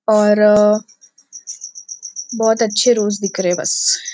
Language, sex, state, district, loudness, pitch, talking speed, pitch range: Hindi, female, Maharashtra, Nagpur, -15 LUFS, 210 Hz, 115 wpm, 210-225 Hz